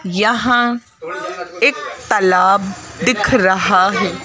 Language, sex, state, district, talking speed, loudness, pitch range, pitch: Hindi, female, Madhya Pradesh, Bhopal, 85 wpm, -14 LUFS, 185-240 Hz, 200 Hz